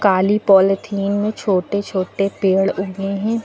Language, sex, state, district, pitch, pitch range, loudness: Hindi, female, Uttar Pradesh, Lucknow, 195 Hz, 190-205 Hz, -18 LUFS